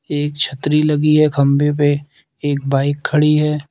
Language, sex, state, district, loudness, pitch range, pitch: Hindi, male, Uttar Pradesh, Lalitpur, -16 LUFS, 145-150 Hz, 145 Hz